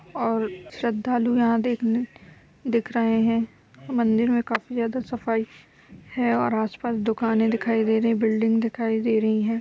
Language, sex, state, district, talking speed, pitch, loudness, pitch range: Hindi, female, Uttar Pradesh, Budaun, 150 wpm, 230 Hz, -24 LUFS, 225-235 Hz